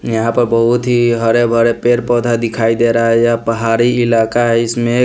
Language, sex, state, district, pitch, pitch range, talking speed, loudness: Hindi, male, Punjab, Pathankot, 115 Hz, 115-120 Hz, 215 wpm, -13 LUFS